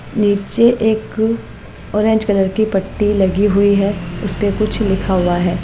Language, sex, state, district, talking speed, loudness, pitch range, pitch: Hindi, female, Maharashtra, Mumbai Suburban, 160 wpm, -16 LUFS, 195-215 Hz, 205 Hz